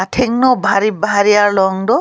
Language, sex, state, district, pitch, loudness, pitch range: Karbi, female, Assam, Karbi Anglong, 205 Hz, -13 LUFS, 200-235 Hz